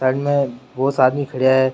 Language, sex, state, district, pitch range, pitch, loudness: Rajasthani, male, Rajasthan, Churu, 130-140 Hz, 130 Hz, -18 LUFS